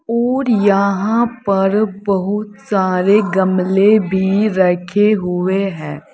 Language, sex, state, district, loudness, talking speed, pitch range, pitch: Hindi, female, Uttar Pradesh, Saharanpur, -15 LUFS, 100 wpm, 190-210 Hz, 200 Hz